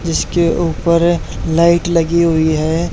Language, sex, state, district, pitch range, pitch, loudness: Hindi, male, Haryana, Charkhi Dadri, 165-170 Hz, 170 Hz, -14 LUFS